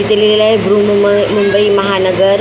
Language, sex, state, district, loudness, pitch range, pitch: Marathi, female, Maharashtra, Mumbai Suburban, -10 LUFS, 200-210 Hz, 205 Hz